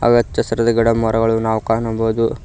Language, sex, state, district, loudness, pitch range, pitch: Kannada, male, Karnataka, Koppal, -17 LUFS, 110-115 Hz, 115 Hz